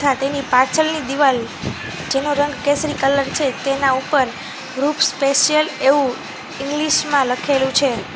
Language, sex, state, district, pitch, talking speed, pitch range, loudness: Gujarati, female, Gujarat, Valsad, 275 Hz, 125 wpm, 265-290 Hz, -18 LUFS